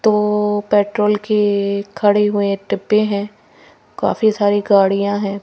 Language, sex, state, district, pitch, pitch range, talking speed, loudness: Hindi, female, Himachal Pradesh, Shimla, 205 Hz, 200-210 Hz, 90 wpm, -16 LUFS